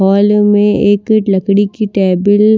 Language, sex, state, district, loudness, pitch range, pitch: Hindi, female, Maharashtra, Washim, -11 LUFS, 200-210 Hz, 205 Hz